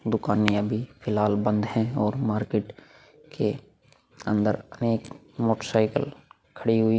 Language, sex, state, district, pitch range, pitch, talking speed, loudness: Hindi, male, Chhattisgarh, Korba, 105-115 Hz, 110 Hz, 120 wpm, -26 LUFS